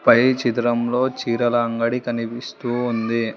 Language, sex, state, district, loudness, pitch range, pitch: Telugu, female, Telangana, Hyderabad, -21 LUFS, 115-125 Hz, 120 Hz